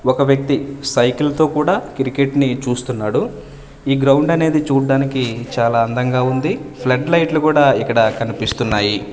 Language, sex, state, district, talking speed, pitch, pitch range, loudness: Telugu, male, Andhra Pradesh, Manyam, 130 wpm, 135 Hz, 120-140 Hz, -16 LUFS